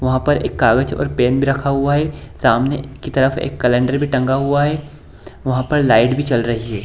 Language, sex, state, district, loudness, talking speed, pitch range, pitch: Hindi, male, Bihar, Kishanganj, -17 LUFS, 225 wpm, 125-145 Hz, 135 Hz